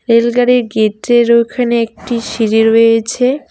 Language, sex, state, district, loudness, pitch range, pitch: Bengali, female, West Bengal, Cooch Behar, -12 LUFS, 225-245 Hz, 235 Hz